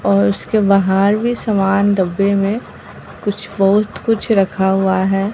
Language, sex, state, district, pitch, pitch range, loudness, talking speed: Hindi, female, Bihar, Katihar, 195 Hz, 190-210 Hz, -15 LUFS, 145 wpm